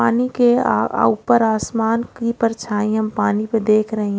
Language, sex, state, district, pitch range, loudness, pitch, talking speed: Hindi, female, Odisha, Khordha, 215-235 Hz, -18 LUFS, 225 Hz, 185 wpm